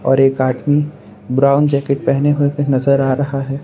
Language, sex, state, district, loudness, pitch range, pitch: Hindi, male, Gujarat, Valsad, -15 LUFS, 135-145 Hz, 140 Hz